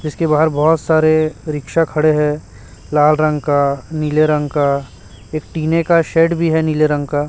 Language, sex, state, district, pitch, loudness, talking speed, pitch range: Hindi, male, Chhattisgarh, Raipur, 155 Hz, -15 LUFS, 190 wpm, 145-160 Hz